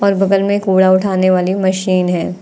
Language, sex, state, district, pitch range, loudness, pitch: Hindi, female, Uttar Pradesh, Lucknow, 185-195 Hz, -14 LUFS, 190 Hz